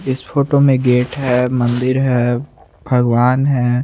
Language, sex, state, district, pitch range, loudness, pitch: Hindi, male, Chandigarh, Chandigarh, 125-135 Hz, -15 LUFS, 125 Hz